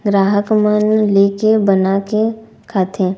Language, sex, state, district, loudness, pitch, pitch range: Chhattisgarhi, female, Chhattisgarh, Raigarh, -14 LUFS, 205 Hz, 195-215 Hz